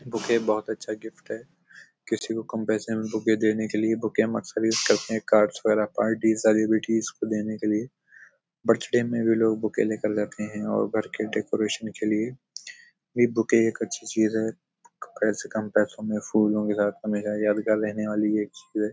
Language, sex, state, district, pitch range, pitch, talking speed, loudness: Hindi, male, Uttar Pradesh, Budaun, 105-110 Hz, 110 Hz, 185 wpm, -25 LUFS